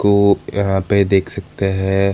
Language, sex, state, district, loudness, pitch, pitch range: Hindi, male, Bihar, Gaya, -16 LUFS, 100 Hz, 95-100 Hz